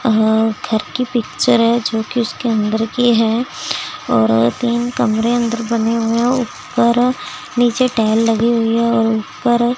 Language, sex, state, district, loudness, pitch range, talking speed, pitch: Hindi, female, Chandigarh, Chandigarh, -16 LUFS, 220-240 Hz, 160 wpm, 230 Hz